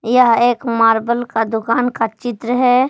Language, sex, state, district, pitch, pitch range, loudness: Hindi, female, Jharkhand, Palamu, 235 Hz, 225-245 Hz, -16 LUFS